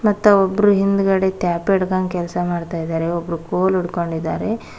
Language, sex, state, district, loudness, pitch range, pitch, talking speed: Kannada, female, Karnataka, Koppal, -19 LUFS, 170-195 Hz, 185 Hz, 125 wpm